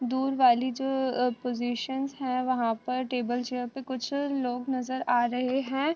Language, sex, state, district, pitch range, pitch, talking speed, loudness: Hindi, female, Uttar Pradesh, Jalaun, 245-265 Hz, 255 Hz, 160 wpm, -28 LUFS